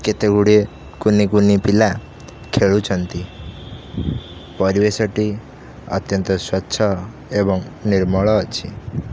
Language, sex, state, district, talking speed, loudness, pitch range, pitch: Odia, male, Odisha, Khordha, 85 wpm, -18 LUFS, 95-105 Hz, 100 Hz